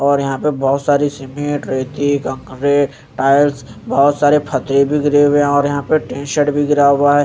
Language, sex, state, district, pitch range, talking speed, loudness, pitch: Hindi, male, Chandigarh, Chandigarh, 135-145 Hz, 200 wpm, -15 LUFS, 145 Hz